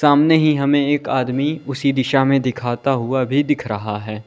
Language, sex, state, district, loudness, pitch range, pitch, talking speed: Hindi, male, Uttar Pradesh, Lalitpur, -18 LUFS, 125-145 Hz, 135 Hz, 195 wpm